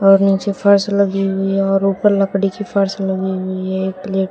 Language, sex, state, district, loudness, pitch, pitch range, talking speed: Hindi, female, Uttar Pradesh, Shamli, -16 LUFS, 195 Hz, 190-200 Hz, 225 wpm